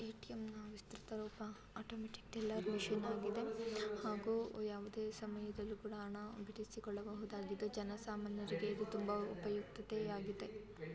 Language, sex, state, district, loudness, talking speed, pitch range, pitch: Kannada, female, Karnataka, Bellary, -45 LUFS, 110 wpm, 210-220 Hz, 210 Hz